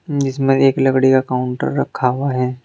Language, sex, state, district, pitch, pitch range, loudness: Hindi, male, Uttar Pradesh, Saharanpur, 130 Hz, 125-135 Hz, -16 LUFS